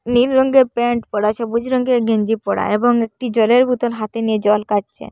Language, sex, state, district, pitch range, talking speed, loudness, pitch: Bengali, female, Assam, Hailakandi, 215-245 Hz, 200 wpm, -17 LUFS, 235 Hz